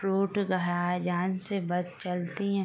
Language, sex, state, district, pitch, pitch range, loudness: Hindi, female, Uttar Pradesh, Gorakhpur, 180 Hz, 180-195 Hz, -30 LUFS